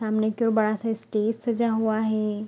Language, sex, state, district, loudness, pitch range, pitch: Hindi, female, Bihar, Araria, -25 LUFS, 215-225 Hz, 220 Hz